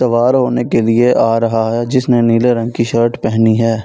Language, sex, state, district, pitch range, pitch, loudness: Hindi, male, Delhi, New Delhi, 115-120 Hz, 115 Hz, -13 LUFS